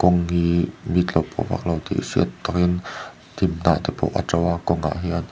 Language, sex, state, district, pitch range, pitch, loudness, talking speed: Mizo, male, Mizoram, Aizawl, 85-90 Hz, 85 Hz, -22 LUFS, 100 wpm